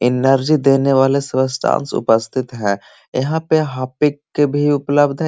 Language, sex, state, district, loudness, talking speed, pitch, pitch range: Magahi, male, Bihar, Gaya, -17 LUFS, 135 wpm, 135 Hz, 130-145 Hz